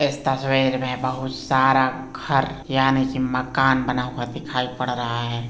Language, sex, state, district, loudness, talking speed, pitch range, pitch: Hindi, male, Uttar Pradesh, Hamirpur, -22 LUFS, 165 wpm, 125-135 Hz, 130 Hz